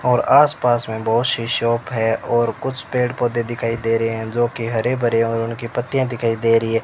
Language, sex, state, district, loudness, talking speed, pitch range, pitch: Hindi, male, Rajasthan, Bikaner, -19 LUFS, 245 wpm, 115-125 Hz, 115 Hz